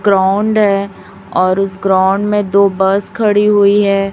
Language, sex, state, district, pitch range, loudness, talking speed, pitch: Hindi, female, Chhattisgarh, Raipur, 195-205 Hz, -12 LUFS, 145 wpm, 200 Hz